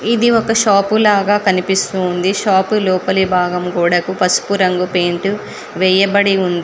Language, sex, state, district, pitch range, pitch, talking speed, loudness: Telugu, female, Telangana, Mahabubabad, 180-200 Hz, 190 Hz, 135 wpm, -14 LUFS